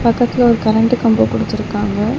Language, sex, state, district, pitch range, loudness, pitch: Tamil, female, Tamil Nadu, Chennai, 205-240 Hz, -15 LUFS, 225 Hz